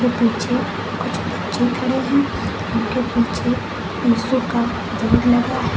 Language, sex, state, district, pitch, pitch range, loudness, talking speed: Hindi, female, Uttar Pradesh, Lucknow, 240 Hz, 235-250 Hz, -20 LUFS, 115 wpm